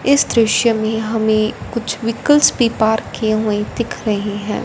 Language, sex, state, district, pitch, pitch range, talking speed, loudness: Hindi, male, Punjab, Fazilka, 220 Hz, 215-230 Hz, 165 wpm, -16 LUFS